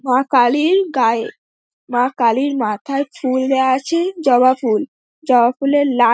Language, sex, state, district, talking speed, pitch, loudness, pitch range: Bengali, female, West Bengal, Dakshin Dinajpur, 165 wpm, 260 Hz, -16 LUFS, 245-280 Hz